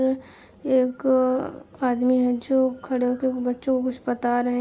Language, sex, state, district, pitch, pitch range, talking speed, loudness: Hindi, female, Uttar Pradesh, Jalaun, 255 Hz, 245-260 Hz, 155 wpm, -23 LUFS